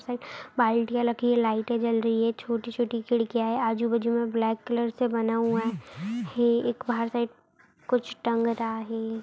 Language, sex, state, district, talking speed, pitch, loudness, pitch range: Hindi, female, Bihar, Madhepura, 165 wpm, 235 Hz, -27 LUFS, 225-240 Hz